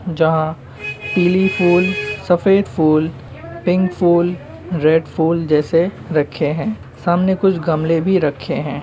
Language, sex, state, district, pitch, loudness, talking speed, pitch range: Hindi, male, Uttar Pradesh, Jalaun, 165 Hz, -17 LUFS, 100 wpm, 150-180 Hz